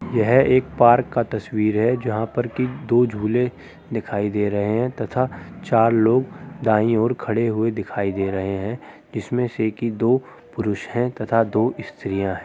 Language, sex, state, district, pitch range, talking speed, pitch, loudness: Hindi, male, Uttar Pradesh, Muzaffarnagar, 105-125 Hz, 175 wpm, 115 Hz, -21 LUFS